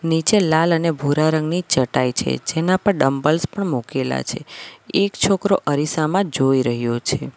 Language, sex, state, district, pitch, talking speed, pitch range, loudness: Gujarati, female, Gujarat, Valsad, 155 Hz, 155 wpm, 135-180 Hz, -19 LUFS